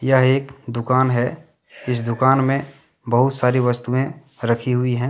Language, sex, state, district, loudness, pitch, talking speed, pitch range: Hindi, male, Jharkhand, Deoghar, -20 LUFS, 130 Hz, 155 wpm, 125-135 Hz